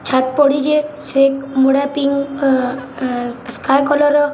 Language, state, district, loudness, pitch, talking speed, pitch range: Sambalpuri, Odisha, Sambalpur, -16 LUFS, 275 Hz, 140 wpm, 260-290 Hz